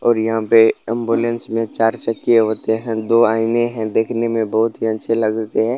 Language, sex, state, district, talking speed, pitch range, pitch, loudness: Hindi, male, Bihar, Gopalganj, 195 wpm, 110-115 Hz, 115 Hz, -17 LUFS